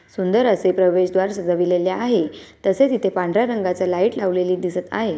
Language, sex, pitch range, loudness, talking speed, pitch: Marathi, female, 180-200 Hz, -19 LUFS, 150 wpm, 185 Hz